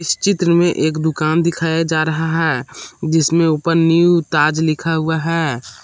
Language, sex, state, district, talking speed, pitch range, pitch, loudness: Hindi, male, Jharkhand, Palamu, 155 wpm, 155-165 Hz, 160 Hz, -16 LUFS